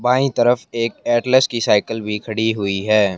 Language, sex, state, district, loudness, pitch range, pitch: Hindi, male, Haryana, Jhajjar, -18 LUFS, 105-120 Hz, 115 Hz